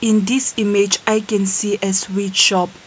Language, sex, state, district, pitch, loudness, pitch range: English, female, Nagaland, Kohima, 200 Hz, -16 LUFS, 195-215 Hz